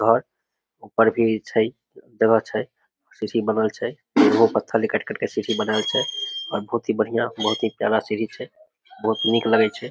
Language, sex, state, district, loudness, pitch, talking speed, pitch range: Maithili, male, Bihar, Samastipur, -22 LUFS, 115 Hz, 200 wpm, 110-120 Hz